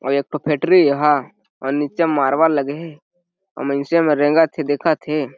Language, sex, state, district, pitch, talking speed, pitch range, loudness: Chhattisgarhi, male, Chhattisgarh, Jashpur, 150 Hz, 190 wpm, 140-165 Hz, -17 LUFS